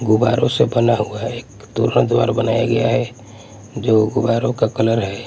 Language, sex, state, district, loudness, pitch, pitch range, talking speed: Hindi, male, Punjab, Kapurthala, -17 LUFS, 115 Hz, 110-120 Hz, 160 wpm